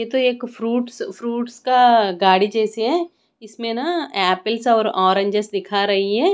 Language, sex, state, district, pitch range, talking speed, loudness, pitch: Hindi, female, Odisha, Khordha, 200-245 Hz, 160 wpm, -19 LUFS, 230 Hz